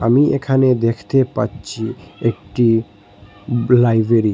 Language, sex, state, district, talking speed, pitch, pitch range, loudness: Bengali, male, Assam, Hailakandi, 95 wpm, 115 Hz, 105-125 Hz, -17 LUFS